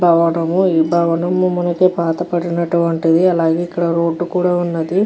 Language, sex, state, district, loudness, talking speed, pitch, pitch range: Telugu, female, Andhra Pradesh, Krishna, -16 LUFS, 130 wpm, 170 Hz, 165-175 Hz